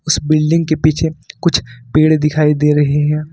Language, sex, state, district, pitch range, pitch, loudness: Hindi, male, Jharkhand, Ranchi, 150-155 Hz, 155 Hz, -14 LUFS